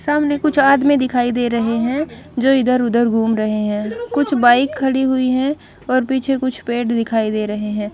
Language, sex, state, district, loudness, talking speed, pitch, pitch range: Hindi, female, Bihar, Patna, -17 LUFS, 190 wpm, 250 Hz, 230-270 Hz